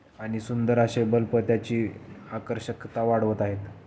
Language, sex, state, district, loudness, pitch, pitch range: Marathi, male, Maharashtra, Pune, -26 LUFS, 115 Hz, 110-120 Hz